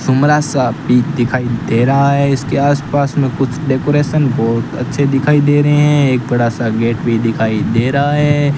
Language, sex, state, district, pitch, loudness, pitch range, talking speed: Hindi, male, Rajasthan, Bikaner, 135 Hz, -14 LUFS, 120-145 Hz, 195 wpm